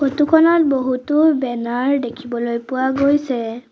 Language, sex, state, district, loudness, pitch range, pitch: Assamese, female, Assam, Sonitpur, -17 LUFS, 245-290 Hz, 260 Hz